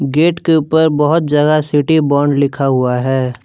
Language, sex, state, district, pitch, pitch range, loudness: Hindi, male, Jharkhand, Palamu, 145 Hz, 135-160 Hz, -13 LUFS